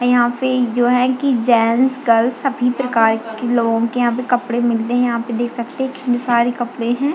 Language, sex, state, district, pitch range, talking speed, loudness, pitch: Hindi, female, Chhattisgarh, Bilaspur, 235-250 Hz, 235 wpm, -17 LUFS, 245 Hz